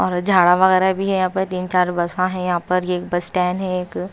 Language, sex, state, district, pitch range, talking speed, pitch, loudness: Hindi, female, Maharashtra, Mumbai Suburban, 180-185 Hz, 245 wpm, 180 Hz, -19 LUFS